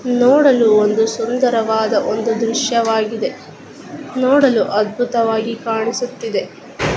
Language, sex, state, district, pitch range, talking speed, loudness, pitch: Kannada, male, Karnataka, Dakshina Kannada, 220-245 Hz, 70 wpm, -16 LUFS, 230 Hz